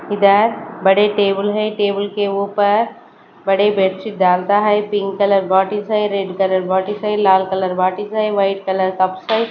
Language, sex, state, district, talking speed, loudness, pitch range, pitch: Hindi, female, Maharashtra, Mumbai Suburban, 160 wpm, -16 LUFS, 190-210 Hz, 200 Hz